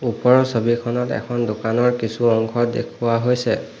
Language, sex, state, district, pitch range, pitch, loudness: Assamese, male, Assam, Hailakandi, 115-120 Hz, 120 Hz, -19 LUFS